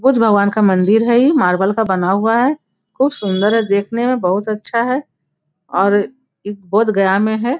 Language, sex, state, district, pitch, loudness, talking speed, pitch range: Hindi, female, Bihar, Bhagalpur, 215 Hz, -15 LUFS, 190 wpm, 195-235 Hz